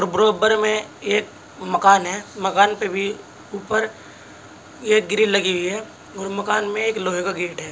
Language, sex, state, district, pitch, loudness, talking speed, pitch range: Hindi, male, Uttar Pradesh, Saharanpur, 200 Hz, -20 LUFS, 170 wpm, 185-215 Hz